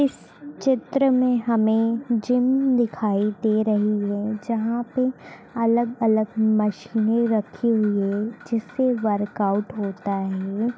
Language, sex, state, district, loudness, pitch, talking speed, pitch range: Hindi, female, Bihar, Sitamarhi, -22 LUFS, 225 Hz, 115 wpm, 210-240 Hz